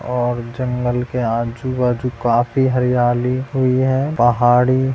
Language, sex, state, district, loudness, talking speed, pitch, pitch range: Hindi, male, Bihar, Purnia, -17 LUFS, 110 wpm, 125 Hz, 120-130 Hz